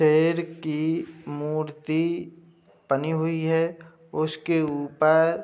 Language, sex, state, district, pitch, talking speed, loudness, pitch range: Hindi, male, Uttar Pradesh, Budaun, 160 Hz, 100 wpm, -25 LUFS, 155-165 Hz